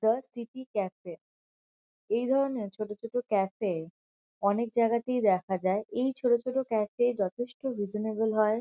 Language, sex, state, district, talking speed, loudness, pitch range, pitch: Bengali, female, West Bengal, Kolkata, 125 wpm, -30 LUFS, 200-245 Hz, 220 Hz